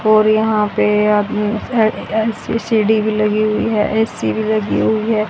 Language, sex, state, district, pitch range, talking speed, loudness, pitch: Hindi, female, Haryana, Rohtak, 210-220 Hz, 135 wpm, -16 LUFS, 215 Hz